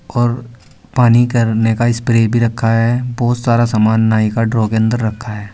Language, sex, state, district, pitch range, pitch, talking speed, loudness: Hindi, male, Uttar Pradesh, Saharanpur, 110-120 Hz, 115 Hz, 195 wpm, -14 LUFS